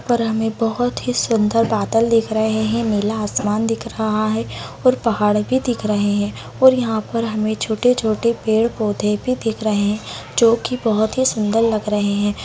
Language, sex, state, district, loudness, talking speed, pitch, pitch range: Hindi, female, Bihar, Bhagalpur, -18 LUFS, 190 wpm, 220 Hz, 215-230 Hz